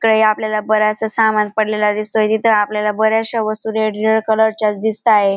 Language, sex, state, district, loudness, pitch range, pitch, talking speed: Marathi, female, Maharashtra, Dhule, -16 LUFS, 215-220 Hz, 215 Hz, 165 wpm